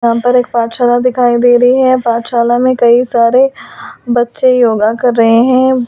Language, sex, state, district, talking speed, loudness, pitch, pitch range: Hindi, female, Delhi, New Delhi, 175 wpm, -10 LUFS, 245 Hz, 235-255 Hz